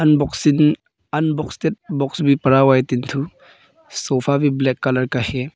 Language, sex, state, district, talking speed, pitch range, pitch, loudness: Hindi, female, Arunachal Pradesh, Papum Pare, 160 wpm, 130-150 Hz, 140 Hz, -18 LUFS